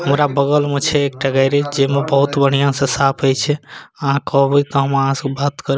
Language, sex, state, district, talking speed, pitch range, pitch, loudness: Maithili, male, Bihar, Madhepura, 215 wpm, 135-145 Hz, 140 Hz, -16 LUFS